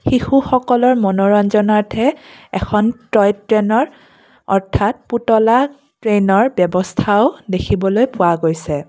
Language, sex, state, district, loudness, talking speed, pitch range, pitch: Assamese, female, Assam, Kamrup Metropolitan, -15 LUFS, 80 wpm, 195-245 Hz, 215 Hz